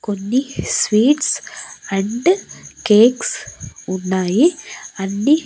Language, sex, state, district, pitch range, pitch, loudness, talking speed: Telugu, female, Andhra Pradesh, Annamaya, 195-280 Hz, 225 Hz, -17 LUFS, 65 wpm